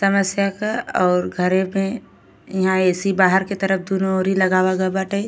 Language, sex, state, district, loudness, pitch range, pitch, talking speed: Bhojpuri, female, Uttar Pradesh, Gorakhpur, -19 LUFS, 185-195 Hz, 190 Hz, 170 wpm